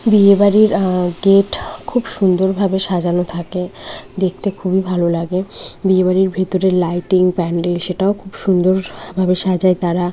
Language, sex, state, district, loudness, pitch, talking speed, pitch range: Bengali, female, West Bengal, North 24 Parganas, -16 LUFS, 185 Hz, 135 wpm, 180-195 Hz